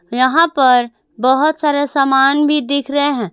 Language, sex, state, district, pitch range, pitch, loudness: Hindi, female, Jharkhand, Garhwa, 255-290 Hz, 275 Hz, -14 LUFS